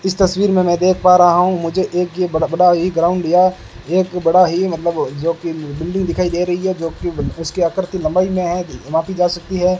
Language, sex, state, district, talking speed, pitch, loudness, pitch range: Hindi, male, Rajasthan, Bikaner, 235 wpm, 180 Hz, -16 LUFS, 170-185 Hz